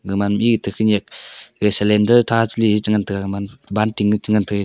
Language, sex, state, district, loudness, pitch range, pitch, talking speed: Wancho, male, Arunachal Pradesh, Longding, -17 LUFS, 100-110 Hz, 105 Hz, 180 wpm